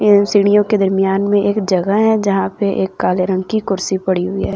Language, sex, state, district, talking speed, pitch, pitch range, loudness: Hindi, female, Delhi, New Delhi, 225 wpm, 195 Hz, 190-205 Hz, -15 LUFS